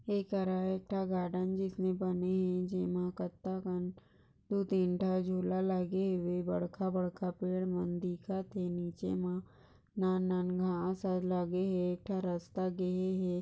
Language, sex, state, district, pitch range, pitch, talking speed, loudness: Hindi, female, Maharashtra, Chandrapur, 180-185 Hz, 185 Hz, 145 wpm, -35 LUFS